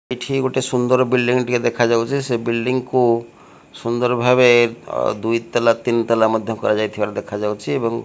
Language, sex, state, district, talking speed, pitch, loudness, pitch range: Odia, male, Odisha, Malkangiri, 155 wpm, 120 Hz, -18 LUFS, 115-125 Hz